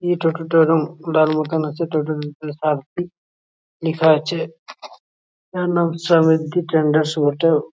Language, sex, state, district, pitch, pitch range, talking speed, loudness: Bengali, male, West Bengal, Jhargram, 160 Hz, 155-165 Hz, 110 wpm, -19 LUFS